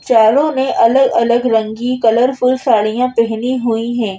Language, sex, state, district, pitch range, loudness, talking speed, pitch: Hindi, female, Madhya Pradesh, Bhopal, 225-255 Hz, -14 LUFS, 130 wpm, 235 Hz